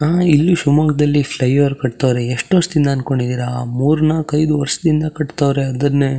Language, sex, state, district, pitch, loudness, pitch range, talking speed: Kannada, male, Karnataka, Shimoga, 145 Hz, -16 LUFS, 135-155 Hz, 145 wpm